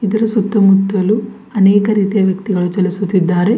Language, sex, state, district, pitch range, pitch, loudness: Kannada, female, Karnataka, Bidar, 190-215 Hz, 200 Hz, -14 LUFS